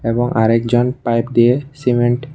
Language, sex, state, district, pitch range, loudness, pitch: Bengali, male, Tripura, West Tripura, 115-125 Hz, -16 LUFS, 120 Hz